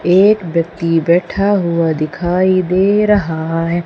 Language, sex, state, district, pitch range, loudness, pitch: Hindi, female, Madhya Pradesh, Umaria, 165-190 Hz, -14 LUFS, 175 Hz